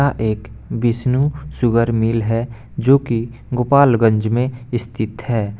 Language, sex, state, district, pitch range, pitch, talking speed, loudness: Hindi, male, Bihar, Gopalganj, 115-125 Hz, 115 Hz, 130 wpm, -18 LUFS